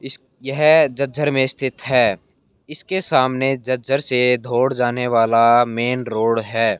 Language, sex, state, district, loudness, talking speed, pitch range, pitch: Hindi, male, Haryana, Jhajjar, -18 LUFS, 140 wpm, 120-135 Hz, 130 Hz